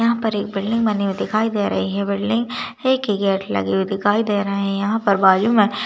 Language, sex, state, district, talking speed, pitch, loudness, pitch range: Hindi, female, West Bengal, Dakshin Dinajpur, 245 wpm, 205 Hz, -19 LUFS, 195-220 Hz